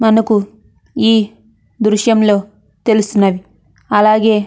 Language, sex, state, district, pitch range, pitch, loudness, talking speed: Telugu, female, Andhra Pradesh, Anantapur, 200-220 Hz, 215 Hz, -13 LUFS, 80 wpm